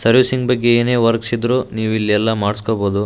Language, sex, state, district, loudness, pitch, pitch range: Kannada, male, Karnataka, Raichur, -16 LUFS, 115 Hz, 110-120 Hz